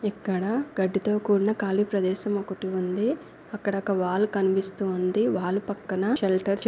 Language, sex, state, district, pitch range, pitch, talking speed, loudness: Telugu, female, Andhra Pradesh, Anantapur, 190-210 Hz, 200 Hz, 145 wpm, -26 LUFS